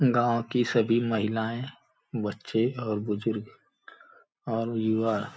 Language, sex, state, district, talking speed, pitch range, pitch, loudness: Hindi, male, Uttar Pradesh, Gorakhpur, 110 wpm, 110-125 Hz, 115 Hz, -28 LUFS